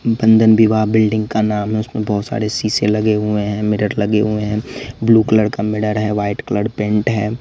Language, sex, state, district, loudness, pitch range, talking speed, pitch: Hindi, male, Bihar, West Champaran, -16 LUFS, 105-110 Hz, 210 wpm, 105 Hz